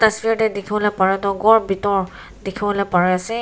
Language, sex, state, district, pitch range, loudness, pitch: Nagamese, female, Nagaland, Kohima, 195-220 Hz, -18 LUFS, 200 Hz